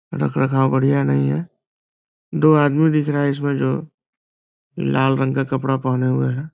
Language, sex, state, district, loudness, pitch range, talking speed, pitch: Hindi, male, Bihar, Muzaffarpur, -19 LUFS, 130-145 Hz, 175 wpm, 135 Hz